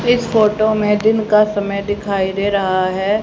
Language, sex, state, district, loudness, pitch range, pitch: Hindi, male, Haryana, Charkhi Dadri, -16 LUFS, 200-215 Hz, 210 Hz